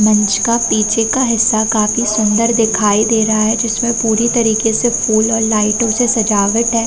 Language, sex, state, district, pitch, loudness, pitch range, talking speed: Hindi, female, Bihar, Madhepura, 225 Hz, -13 LUFS, 215-230 Hz, 185 wpm